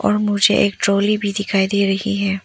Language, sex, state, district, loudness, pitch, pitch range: Hindi, female, Arunachal Pradesh, Papum Pare, -17 LUFS, 200 Hz, 200-205 Hz